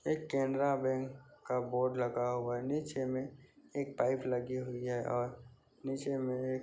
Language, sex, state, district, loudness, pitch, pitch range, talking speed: Hindi, male, Chhattisgarh, Bastar, -36 LUFS, 130 Hz, 125-135 Hz, 180 wpm